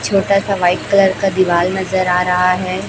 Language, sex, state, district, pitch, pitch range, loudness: Hindi, female, Chhattisgarh, Raipur, 185 Hz, 180-195 Hz, -14 LUFS